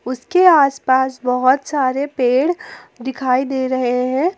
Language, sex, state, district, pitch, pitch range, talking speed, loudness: Hindi, female, Jharkhand, Ranchi, 265 Hz, 255-285 Hz, 125 wpm, -16 LUFS